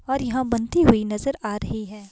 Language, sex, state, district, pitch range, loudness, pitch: Hindi, female, Himachal Pradesh, Shimla, 210-265 Hz, -22 LUFS, 235 Hz